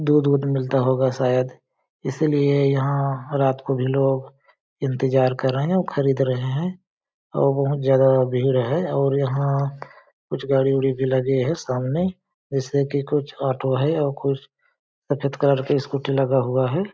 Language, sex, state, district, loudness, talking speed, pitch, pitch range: Hindi, male, Chhattisgarh, Balrampur, -21 LUFS, 165 wpm, 135 Hz, 130-140 Hz